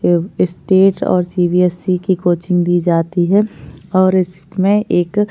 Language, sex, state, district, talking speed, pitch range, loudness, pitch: Hindi, female, Maharashtra, Chandrapur, 180 wpm, 175-190 Hz, -15 LUFS, 180 Hz